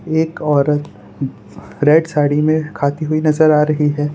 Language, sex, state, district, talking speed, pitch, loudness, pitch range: Hindi, male, Gujarat, Valsad, 160 wpm, 150 Hz, -16 LUFS, 145-155 Hz